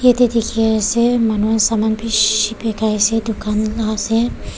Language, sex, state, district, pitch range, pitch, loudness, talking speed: Nagamese, female, Nagaland, Kohima, 215-230 Hz, 225 Hz, -16 LUFS, 130 wpm